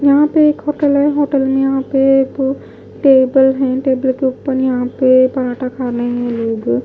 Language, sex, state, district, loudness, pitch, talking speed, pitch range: Hindi, female, Punjab, Pathankot, -14 LUFS, 265 Hz, 185 wpm, 255-275 Hz